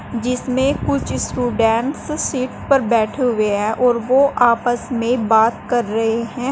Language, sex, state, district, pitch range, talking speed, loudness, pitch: Hindi, female, Uttar Pradesh, Saharanpur, 225-255 Hz, 145 wpm, -18 LUFS, 240 Hz